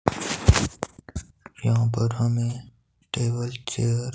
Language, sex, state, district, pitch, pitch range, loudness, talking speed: Hindi, male, Himachal Pradesh, Shimla, 120 Hz, 115-120 Hz, -25 LUFS, 85 wpm